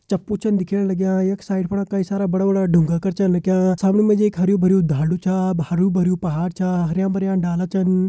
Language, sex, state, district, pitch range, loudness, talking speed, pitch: Hindi, male, Uttarakhand, Uttarkashi, 180-195 Hz, -19 LUFS, 200 wpm, 190 Hz